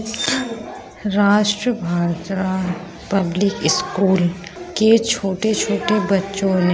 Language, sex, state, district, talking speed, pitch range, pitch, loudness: Hindi, female, Bihar, Muzaffarpur, 70 wpm, 185-215 Hz, 200 Hz, -19 LUFS